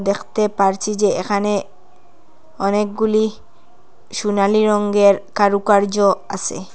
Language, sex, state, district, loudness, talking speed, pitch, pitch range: Bengali, female, Assam, Hailakandi, -17 LUFS, 80 wpm, 205 Hz, 200-210 Hz